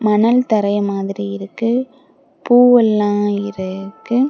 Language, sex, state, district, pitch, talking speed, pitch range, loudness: Tamil, female, Tamil Nadu, Kanyakumari, 215 Hz, 100 wpm, 200-245 Hz, -16 LUFS